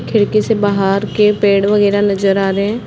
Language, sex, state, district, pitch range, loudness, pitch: Hindi, female, Chhattisgarh, Bastar, 195-210 Hz, -13 LUFS, 205 Hz